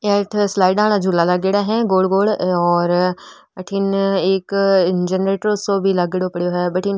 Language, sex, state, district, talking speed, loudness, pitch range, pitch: Rajasthani, female, Rajasthan, Nagaur, 170 wpm, -17 LUFS, 180-200 Hz, 190 Hz